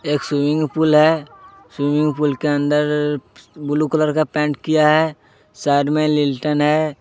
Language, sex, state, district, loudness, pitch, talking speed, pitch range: Hindi, male, Jharkhand, Deoghar, -18 LUFS, 150 Hz, 145 wpm, 145-155 Hz